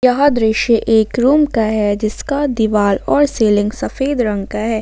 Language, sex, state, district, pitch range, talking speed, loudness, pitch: Hindi, female, Jharkhand, Ranchi, 215-265 Hz, 175 wpm, -15 LUFS, 225 Hz